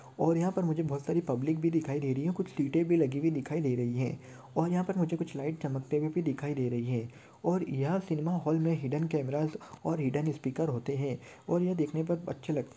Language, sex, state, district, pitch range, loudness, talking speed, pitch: Hindi, male, Maharashtra, Solapur, 135-165 Hz, -32 LUFS, 240 wpm, 155 Hz